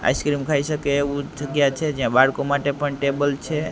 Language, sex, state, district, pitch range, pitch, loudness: Gujarati, male, Gujarat, Gandhinagar, 140-145 Hz, 145 Hz, -21 LUFS